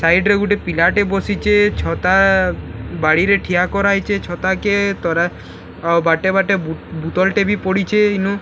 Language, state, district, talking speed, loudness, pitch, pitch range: Sambalpuri, Odisha, Sambalpur, 185 wpm, -16 LUFS, 190 Hz, 170-200 Hz